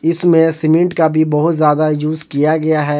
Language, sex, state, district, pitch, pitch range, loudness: Hindi, male, Jharkhand, Palamu, 155 Hz, 150-160 Hz, -14 LUFS